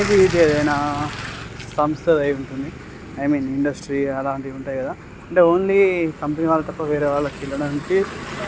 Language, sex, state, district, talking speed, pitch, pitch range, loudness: Telugu, male, Telangana, Karimnagar, 135 wpm, 145 Hz, 140-165 Hz, -20 LUFS